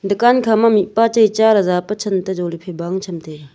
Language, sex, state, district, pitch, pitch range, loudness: Wancho, female, Arunachal Pradesh, Longding, 195 Hz, 180-220 Hz, -16 LUFS